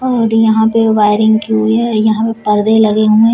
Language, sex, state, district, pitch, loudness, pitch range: Hindi, female, Uttar Pradesh, Shamli, 220 Hz, -11 LUFS, 215-225 Hz